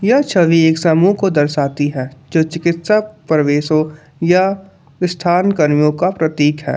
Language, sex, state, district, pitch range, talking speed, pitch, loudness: Hindi, male, Jharkhand, Palamu, 150-185 Hz, 140 wpm, 160 Hz, -15 LUFS